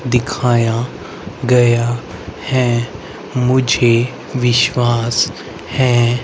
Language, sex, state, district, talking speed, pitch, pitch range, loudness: Hindi, male, Haryana, Rohtak, 60 wpm, 120 Hz, 115-125 Hz, -15 LUFS